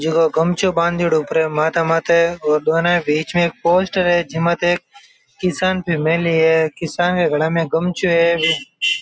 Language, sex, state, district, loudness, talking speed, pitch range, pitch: Marwari, male, Rajasthan, Nagaur, -17 LUFS, 160 wpm, 160-175 Hz, 170 Hz